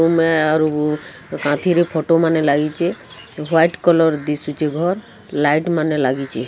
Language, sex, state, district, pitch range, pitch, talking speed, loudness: Odia, female, Odisha, Sambalpur, 150-165 Hz, 155 Hz, 130 wpm, -18 LUFS